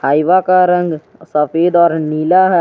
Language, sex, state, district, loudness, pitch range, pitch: Hindi, male, Jharkhand, Garhwa, -13 LUFS, 155-180 Hz, 170 Hz